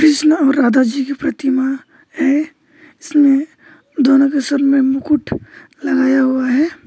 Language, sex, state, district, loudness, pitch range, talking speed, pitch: Hindi, male, West Bengal, Alipurduar, -15 LUFS, 270-300 Hz, 140 wpm, 280 Hz